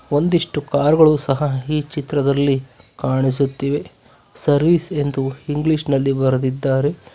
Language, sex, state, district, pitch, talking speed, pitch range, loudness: Kannada, male, Karnataka, Bangalore, 140 Hz, 100 wpm, 135-150 Hz, -18 LUFS